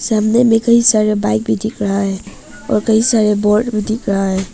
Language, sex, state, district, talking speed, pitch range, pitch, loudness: Hindi, female, Arunachal Pradesh, Papum Pare, 225 wpm, 200-225 Hz, 215 Hz, -14 LUFS